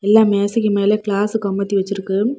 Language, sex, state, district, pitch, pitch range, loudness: Tamil, female, Tamil Nadu, Kanyakumari, 205 Hz, 200-215 Hz, -17 LUFS